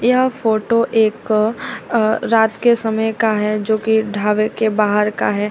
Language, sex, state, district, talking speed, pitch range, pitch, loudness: Hindi, female, Uttar Pradesh, Shamli, 175 wpm, 215-225 Hz, 220 Hz, -17 LUFS